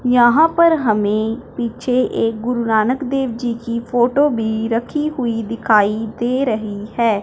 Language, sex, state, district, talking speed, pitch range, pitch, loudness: Hindi, male, Punjab, Fazilka, 150 wpm, 225-250 Hz, 235 Hz, -17 LUFS